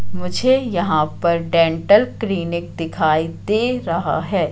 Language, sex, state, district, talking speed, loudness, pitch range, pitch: Hindi, female, Madhya Pradesh, Katni, 120 wpm, -18 LUFS, 160-210 Hz, 170 Hz